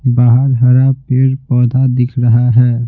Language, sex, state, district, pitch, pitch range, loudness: Hindi, male, Bihar, Patna, 125 Hz, 120-130 Hz, -11 LUFS